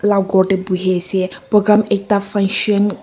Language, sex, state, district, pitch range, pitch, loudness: Nagamese, female, Nagaland, Kohima, 190-205 Hz, 200 Hz, -16 LUFS